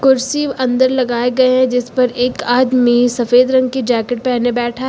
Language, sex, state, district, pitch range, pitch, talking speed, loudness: Hindi, female, Uttar Pradesh, Lucknow, 245-260 Hz, 250 Hz, 195 wpm, -14 LUFS